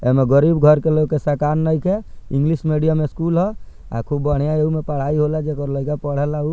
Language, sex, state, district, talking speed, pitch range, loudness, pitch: Bhojpuri, male, Bihar, Muzaffarpur, 200 wpm, 145-155 Hz, -18 LUFS, 150 Hz